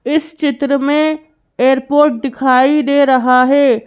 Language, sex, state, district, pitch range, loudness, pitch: Hindi, female, Madhya Pradesh, Bhopal, 260-295 Hz, -13 LUFS, 280 Hz